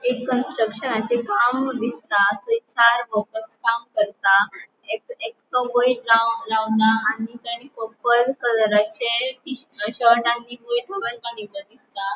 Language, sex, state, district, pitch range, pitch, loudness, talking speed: Konkani, female, Goa, North and South Goa, 220-245 Hz, 235 Hz, -21 LUFS, 125 wpm